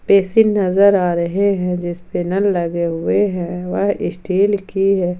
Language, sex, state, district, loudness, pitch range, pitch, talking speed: Hindi, female, Jharkhand, Palamu, -17 LUFS, 175-200 Hz, 190 Hz, 160 wpm